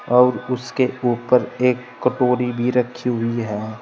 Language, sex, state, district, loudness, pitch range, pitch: Hindi, male, Uttar Pradesh, Saharanpur, -20 LUFS, 120-125 Hz, 125 Hz